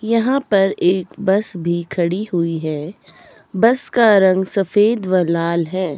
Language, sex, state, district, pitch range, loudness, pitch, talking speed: Hindi, female, Himachal Pradesh, Shimla, 170-215 Hz, -17 LUFS, 190 Hz, 150 wpm